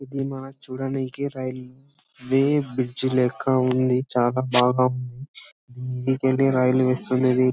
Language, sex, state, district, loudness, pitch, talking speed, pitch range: Telugu, male, Telangana, Karimnagar, -23 LUFS, 130 Hz, 90 wpm, 125-135 Hz